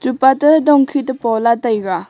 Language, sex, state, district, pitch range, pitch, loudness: Wancho, female, Arunachal Pradesh, Longding, 230-280 Hz, 260 Hz, -14 LUFS